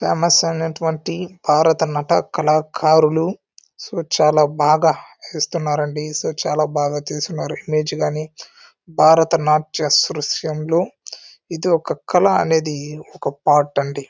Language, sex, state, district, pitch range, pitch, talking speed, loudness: Telugu, male, Andhra Pradesh, Chittoor, 150-165 Hz, 155 Hz, 105 wpm, -18 LUFS